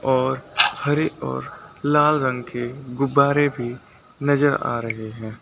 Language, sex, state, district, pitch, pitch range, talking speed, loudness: Hindi, male, Uttar Pradesh, Lucknow, 130 Hz, 120-145 Hz, 135 wpm, -21 LUFS